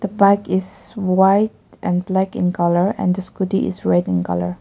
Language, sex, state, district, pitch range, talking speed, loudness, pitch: English, female, Nagaland, Kohima, 175-195 Hz, 195 wpm, -18 LUFS, 190 Hz